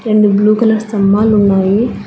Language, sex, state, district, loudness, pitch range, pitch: Telugu, female, Telangana, Hyderabad, -11 LUFS, 200-220 Hz, 210 Hz